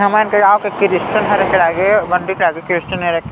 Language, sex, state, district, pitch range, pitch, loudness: Chhattisgarhi, male, Chhattisgarh, Balrampur, 175-205 Hz, 190 Hz, -14 LUFS